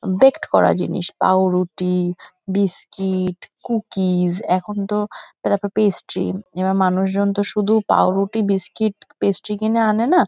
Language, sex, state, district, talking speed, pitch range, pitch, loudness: Bengali, female, West Bengal, Kolkata, 135 wpm, 185-210 Hz, 200 Hz, -19 LUFS